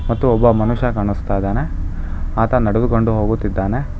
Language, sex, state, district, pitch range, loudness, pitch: Kannada, male, Karnataka, Bangalore, 100-115 Hz, -18 LUFS, 110 Hz